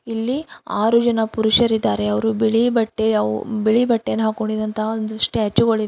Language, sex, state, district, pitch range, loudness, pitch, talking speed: Kannada, female, Karnataka, Bidar, 215-230 Hz, -19 LUFS, 220 Hz, 165 wpm